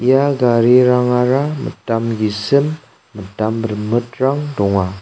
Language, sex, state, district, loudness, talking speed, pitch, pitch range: Garo, male, Meghalaya, South Garo Hills, -16 LUFS, 85 wpm, 120 Hz, 110-135 Hz